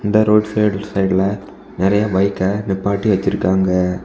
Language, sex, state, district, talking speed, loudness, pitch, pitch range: Tamil, male, Tamil Nadu, Kanyakumari, 120 wpm, -17 LUFS, 100 Hz, 95-105 Hz